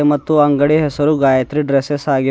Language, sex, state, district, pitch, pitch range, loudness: Kannada, female, Karnataka, Bidar, 145 Hz, 140-150 Hz, -14 LUFS